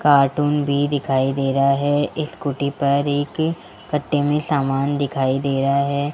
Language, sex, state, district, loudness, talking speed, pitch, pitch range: Hindi, male, Rajasthan, Jaipur, -20 LUFS, 155 wpm, 140 Hz, 140-145 Hz